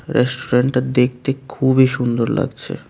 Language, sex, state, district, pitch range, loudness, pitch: Bengali, male, Tripura, West Tripura, 125-135 Hz, -18 LUFS, 130 Hz